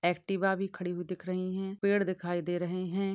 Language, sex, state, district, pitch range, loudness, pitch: Hindi, female, Maharashtra, Sindhudurg, 175-195 Hz, -32 LUFS, 185 Hz